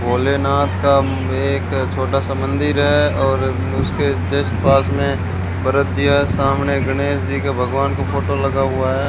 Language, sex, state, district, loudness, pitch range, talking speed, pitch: Hindi, male, Rajasthan, Bikaner, -17 LUFS, 90-105 Hz, 150 wpm, 95 Hz